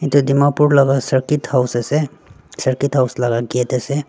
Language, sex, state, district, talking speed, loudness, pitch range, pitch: Nagamese, female, Nagaland, Dimapur, 160 wpm, -17 LUFS, 125-145 Hz, 135 Hz